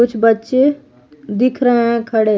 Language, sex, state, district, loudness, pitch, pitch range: Hindi, female, Jharkhand, Palamu, -15 LUFS, 235 Hz, 220-250 Hz